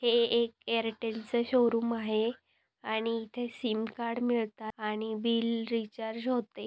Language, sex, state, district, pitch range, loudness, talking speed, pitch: Marathi, female, Maharashtra, Solapur, 220-235 Hz, -32 LUFS, 125 wpm, 230 Hz